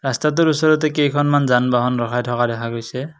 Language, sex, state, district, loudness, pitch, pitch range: Assamese, male, Assam, Kamrup Metropolitan, -18 LUFS, 130 Hz, 120-150 Hz